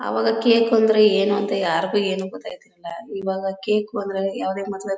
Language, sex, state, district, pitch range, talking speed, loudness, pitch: Kannada, female, Karnataka, Mysore, 190-210 Hz, 170 wpm, -21 LUFS, 195 Hz